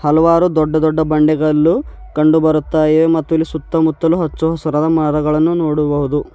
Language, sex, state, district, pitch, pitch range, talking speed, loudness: Kannada, male, Karnataka, Bidar, 155 Hz, 155-160 Hz, 130 wpm, -14 LUFS